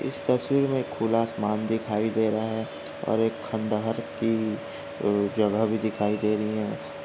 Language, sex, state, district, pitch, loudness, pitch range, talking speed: Hindi, male, Maharashtra, Aurangabad, 110 Hz, -27 LUFS, 105-115 Hz, 155 wpm